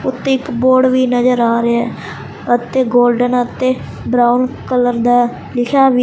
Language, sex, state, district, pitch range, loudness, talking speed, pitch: Punjabi, male, Punjab, Fazilka, 240-255 Hz, -14 LUFS, 160 wpm, 245 Hz